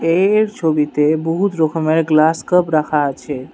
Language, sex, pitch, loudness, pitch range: Bengali, male, 160 Hz, -16 LUFS, 150-170 Hz